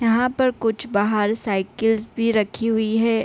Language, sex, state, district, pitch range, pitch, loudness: Hindi, female, Jharkhand, Sahebganj, 215-230 Hz, 225 Hz, -21 LUFS